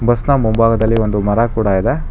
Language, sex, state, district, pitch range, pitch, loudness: Kannada, male, Karnataka, Bangalore, 110-120 Hz, 115 Hz, -15 LUFS